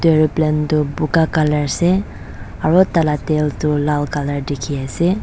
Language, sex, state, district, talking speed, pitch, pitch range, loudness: Nagamese, female, Nagaland, Dimapur, 150 wpm, 150 Hz, 145-160 Hz, -17 LUFS